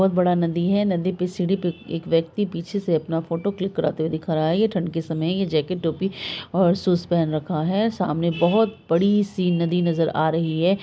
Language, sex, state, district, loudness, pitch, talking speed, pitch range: Hindi, female, Bihar, Araria, -22 LUFS, 175 Hz, 215 wpm, 165-190 Hz